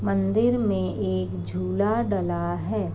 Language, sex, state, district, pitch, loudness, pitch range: Hindi, female, Uttar Pradesh, Varanasi, 95 Hz, -25 LUFS, 90-100 Hz